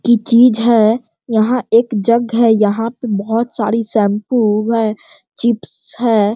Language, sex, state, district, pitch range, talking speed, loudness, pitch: Hindi, male, Bihar, Sitamarhi, 215-235 Hz, 160 wpm, -14 LUFS, 230 Hz